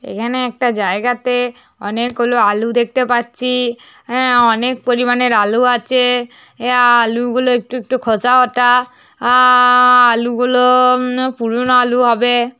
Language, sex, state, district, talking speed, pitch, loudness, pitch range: Bengali, female, West Bengal, North 24 Parganas, 140 wpm, 245 Hz, -13 LUFS, 240-250 Hz